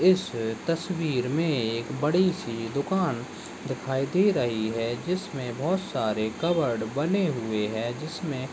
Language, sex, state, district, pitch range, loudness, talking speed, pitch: Hindi, male, Maharashtra, Solapur, 115-170 Hz, -27 LUFS, 135 wpm, 135 Hz